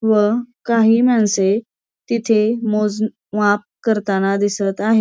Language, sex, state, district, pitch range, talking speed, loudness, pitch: Marathi, female, Maharashtra, Pune, 205-230 Hz, 110 wpm, -17 LUFS, 215 Hz